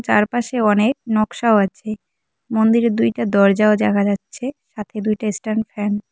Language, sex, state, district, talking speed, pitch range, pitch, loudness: Bengali, female, West Bengal, Cooch Behar, 135 wpm, 205-225 Hz, 215 Hz, -18 LUFS